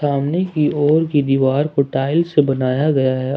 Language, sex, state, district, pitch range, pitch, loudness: Hindi, male, Jharkhand, Ranchi, 135-150 Hz, 145 Hz, -17 LUFS